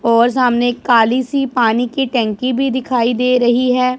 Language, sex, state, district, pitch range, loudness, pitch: Hindi, male, Punjab, Pathankot, 240-255 Hz, -15 LUFS, 250 Hz